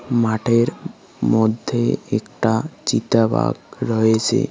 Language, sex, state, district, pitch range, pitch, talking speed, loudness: Bengali, male, West Bengal, Cooch Behar, 110-130 Hz, 120 Hz, 80 wpm, -19 LUFS